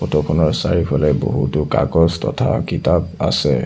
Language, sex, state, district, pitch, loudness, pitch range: Assamese, male, Assam, Sonitpur, 75 Hz, -17 LUFS, 75-80 Hz